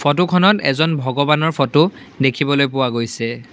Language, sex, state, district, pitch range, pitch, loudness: Assamese, male, Assam, Sonitpur, 130-160 Hz, 145 Hz, -17 LUFS